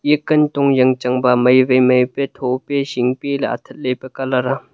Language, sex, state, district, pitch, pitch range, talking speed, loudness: Wancho, male, Arunachal Pradesh, Longding, 130 Hz, 125-140 Hz, 215 wpm, -16 LUFS